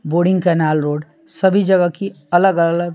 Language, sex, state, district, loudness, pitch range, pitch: Hindi, male, Bihar, Patna, -16 LUFS, 165-190 Hz, 175 Hz